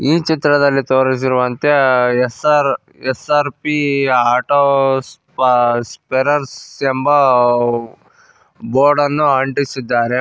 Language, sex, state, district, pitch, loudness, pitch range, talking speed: Kannada, male, Karnataka, Koppal, 135 Hz, -15 LUFS, 125-145 Hz, 65 wpm